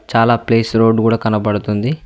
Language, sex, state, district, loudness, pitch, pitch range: Telugu, male, Telangana, Mahabubabad, -15 LUFS, 115 Hz, 110-115 Hz